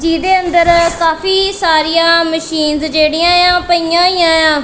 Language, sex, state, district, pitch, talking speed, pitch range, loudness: Punjabi, female, Punjab, Kapurthala, 335 Hz, 140 wpm, 320-355 Hz, -11 LUFS